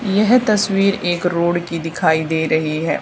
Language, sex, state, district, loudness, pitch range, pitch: Hindi, female, Haryana, Charkhi Dadri, -17 LUFS, 160-195 Hz, 175 Hz